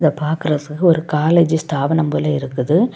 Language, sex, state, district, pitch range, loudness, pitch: Tamil, female, Tamil Nadu, Kanyakumari, 150-165 Hz, -17 LUFS, 155 Hz